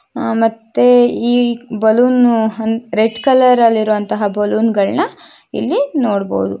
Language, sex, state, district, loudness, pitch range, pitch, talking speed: Kannada, female, Karnataka, Shimoga, -14 LUFS, 215-245 Hz, 225 Hz, 90 wpm